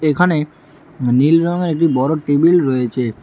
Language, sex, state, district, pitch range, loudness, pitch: Bengali, female, West Bengal, Alipurduar, 130-165 Hz, -15 LUFS, 155 Hz